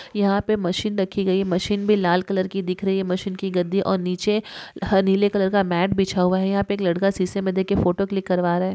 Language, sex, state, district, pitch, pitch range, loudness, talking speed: Hindi, female, Maharashtra, Sindhudurg, 195 Hz, 185-200 Hz, -22 LUFS, 265 wpm